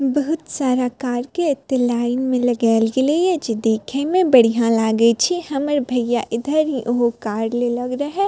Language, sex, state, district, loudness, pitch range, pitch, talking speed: Maithili, female, Bihar, Purnia, -19 LUFS, 235-285 Hz, 250 Hz, 165 wpm